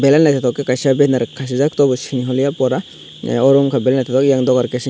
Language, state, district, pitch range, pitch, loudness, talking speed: Kokborok, Tripura, Dhalai, 125-140 Hz, 135 Hz, -15 LUFS, 220 wpm